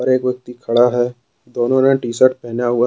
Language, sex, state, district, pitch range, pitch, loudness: Hindi, male, Jharkhand, Deoghar, 120-130 Hz, 125 Hz, -16 LUFS